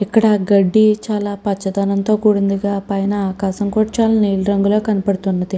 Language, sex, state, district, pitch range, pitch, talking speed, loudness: Telugu, female, Andhra Pradesh, Srikakulam, 195-210 Hz, 200 Hz, 65 wpm, -16 LUFS